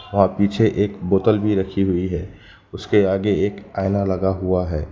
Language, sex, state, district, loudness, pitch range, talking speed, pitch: Hindi, male, West Bengal, Alipurduar, -20 LUFS, 95-100 Hz, 185 wpm, 100 Hz